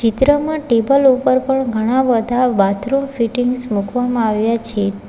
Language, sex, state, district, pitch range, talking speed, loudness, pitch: Gujarati, female, Gujarat, Valsad, 225-265 Hz, 130 wpm, -16 LUFS, 245 Hz